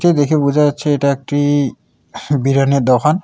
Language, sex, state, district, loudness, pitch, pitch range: Bengali, male, West Bengal, Alipurduar, -15 LUFS, 145 Hz, 140-150 Hz